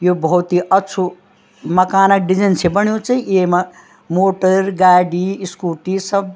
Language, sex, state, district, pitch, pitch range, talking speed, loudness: Garhwali, female, Uttarakhand, Tehri Garhwal, 185 Hz, 180-195 Hz, 150 wpm, -15 LUFS